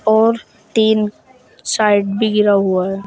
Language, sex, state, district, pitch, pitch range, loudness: Hindi, male, Uttar Pradesh, Shamli, 210 Hz, 200-220 Hz, -15 LUFS